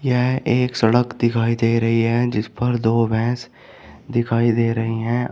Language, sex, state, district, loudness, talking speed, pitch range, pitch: Hindi, male, Uttar Pradesh, Shamli, -19 LUFS, 170 wpm, 115-120 Hz, 120 Hz